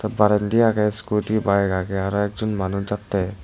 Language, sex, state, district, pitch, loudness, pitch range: Chakma, male, Tripura, West Tripura, 105 Hz, -21 LUFS, 100-105 Hz